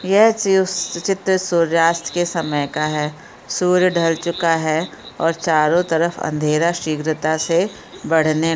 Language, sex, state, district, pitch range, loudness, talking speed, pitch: Hindi, female, Chhattisgarh, Bilaspur, 155-180 Hz, -18 LUFS, 125 wpm, 165 Hz